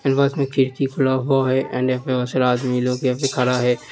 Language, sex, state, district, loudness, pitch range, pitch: Hindi, male, Uttar Pradesh, Hamirpur, -20 LUFS, 125-135 Hz, 130 Hz